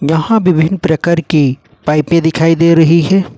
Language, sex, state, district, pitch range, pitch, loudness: Hindi, male, Jharkhand, Ranchi, 155-170 Hz, 165 Hz, -11 LUFS